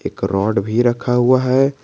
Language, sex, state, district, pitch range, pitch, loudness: Hindi, male, Jharkhand, Garhwa, 110-130 Hz, 120 Hz, -16 LUFS